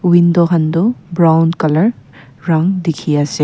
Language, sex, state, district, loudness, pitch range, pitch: Nagamese, female, Nagaland, Kohima, -14 LUFS, 150-175 Hz, 165 Hz